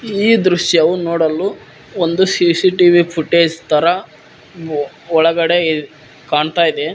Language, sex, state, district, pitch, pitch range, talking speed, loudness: Kannada, male, Karnataka, Koppal, 170 Hz, 160-175 Hz, 85 wpm, -14 LUFS